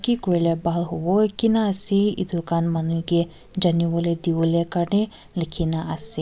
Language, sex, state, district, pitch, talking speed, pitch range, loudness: Nagamese, female, Nagaland, Kohima, 170 Hz, 145 wpm, 165-200 Hz, -22 LUFS